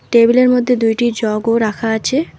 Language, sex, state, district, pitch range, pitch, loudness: Bengali, female, West Bengal, Alipurduar, 225-250 Hz, 230 Hz, -14 LUFS